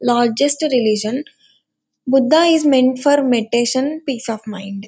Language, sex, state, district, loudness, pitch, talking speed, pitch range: Telugu, female, Andhra Pradesh, Anantapur, -16 LUFS, 255 Hz, 125 wpm, 235-285 Hz